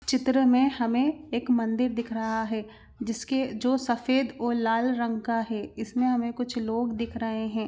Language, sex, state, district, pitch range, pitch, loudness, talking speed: Hindi, female, Bihar, Saran, 225-255 Hz, 235 Hz, -27 LUFS, 180 wpm